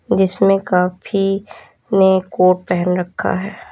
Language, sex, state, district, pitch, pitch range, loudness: Hindi, female, Uttar Pradesh, Lalitpur, 190 Hz, 180-195 Hz, -17 LUFS